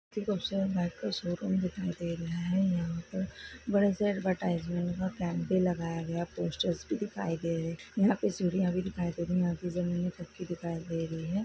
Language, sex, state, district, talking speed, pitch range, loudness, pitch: Hindi, female, Maharashtra, Sindhudurg, 155 wpm, 170-190 Hz, -32 LUFS, 180 Hz